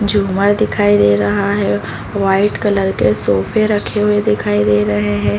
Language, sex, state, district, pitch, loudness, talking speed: Hindi, female, Uttar Pradesh, Deoria, 110 Hz, -14 LUFS, 165 wpm